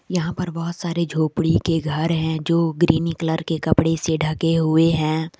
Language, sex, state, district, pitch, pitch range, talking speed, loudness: Hindi, female, Jharkhand, Deoghar, 165 Hz, 160-170 Hz, 190 wpm, -20 LUFS